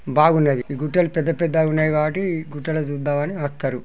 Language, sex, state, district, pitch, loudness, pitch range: Telugu, male, Telangana, Nalgonda, 155 Hz, -21 LUFS, 145-160 Hz